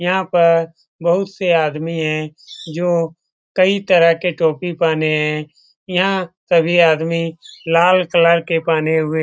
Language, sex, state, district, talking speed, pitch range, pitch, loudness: Hindi, male, Bihar, Lakhisarai, 145 wpm, 160-180 Hz, 170 Hz, -16 LUFS